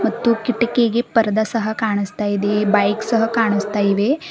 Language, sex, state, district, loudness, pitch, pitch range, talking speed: Kannada, female, Karnataka, Bidar, -18 LUFS, 220 Hz, 210-235 Hz, 140 wpm